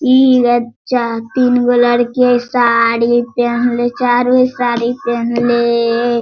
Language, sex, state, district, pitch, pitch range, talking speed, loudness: Hindi, female, Bihar, Sitamarhi, 240 Hz, 235-245 Hz, 105 wpm, -13 LUFS